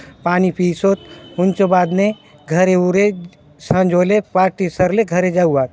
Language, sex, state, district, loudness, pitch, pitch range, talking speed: Halbi, male, Chhattisgarh, Bastar, -16 LUFS, 180 Hz, 175-190 Hz, 125 wpm